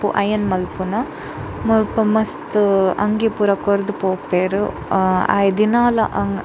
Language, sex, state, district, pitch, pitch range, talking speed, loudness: Tulu, female, Karnataka, Dakshina Kannada, 205 Hz, 190-220 Hz, 100 wpm, -18 LUFS